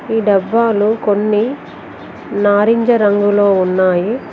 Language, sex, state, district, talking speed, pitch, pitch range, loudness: Telugu, female, Telangana, Mahabubabad, 85 wpm, 205 Hz, 205-225 Hz, -14 LUFS